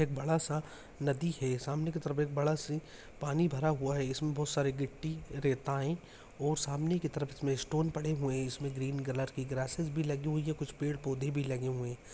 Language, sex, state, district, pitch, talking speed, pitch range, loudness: Hindi, male, Andhra Pradesh, Visakhapatnam, 145 Hz, 220 wpm, 135-155 Hz, -35 LUFS